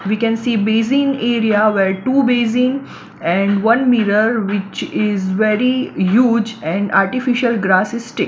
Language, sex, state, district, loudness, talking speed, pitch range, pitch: English, female, Gujarat, Valsad, -16 LUFS, 145 wpm, 205-245 Hz, 225 Hz